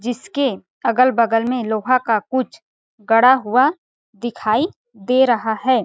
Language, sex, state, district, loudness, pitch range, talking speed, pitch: Hindi, female, Chhattisgarh, Balrampur, -18 LUFS, 220-260 Hz, 125 wpm, 245 Hz